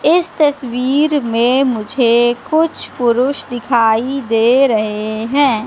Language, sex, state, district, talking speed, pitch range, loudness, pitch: Hindi, female, Madhya Pradesh, Katni, 105 wpm, 230-280 Hz, -14 LUFS, 245 Hz